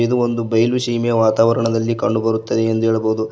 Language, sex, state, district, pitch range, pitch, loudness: Kannada, male, Karnataka, Koppal, 110-115 Hz, 115 Hz, -17 LUFS